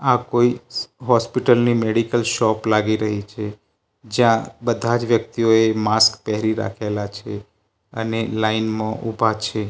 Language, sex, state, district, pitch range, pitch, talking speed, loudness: Gujarati, male, Gujarat, Gandhinagar, 110-115 Hz, 110 Hz, 130 wpm, -20 LUFS